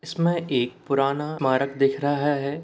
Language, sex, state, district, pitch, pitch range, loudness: Hindi, male, Chhattisgarh, Bilaspur, 140 Hz, 135-155 Hz, -24 LUFS